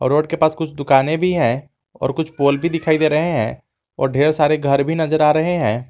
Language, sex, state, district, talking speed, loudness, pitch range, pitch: Hindi, male, Jharkhand, Garhwa, 245 wpm, -17 LUFS, 140-160 Hz, 155 Hz